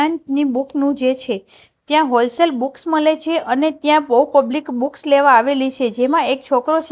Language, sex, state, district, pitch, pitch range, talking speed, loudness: Gujarati, female, Gujarat, Gandhinagar, 280 Hz, 255-305 Hz, 200 wpm, -16 LUFS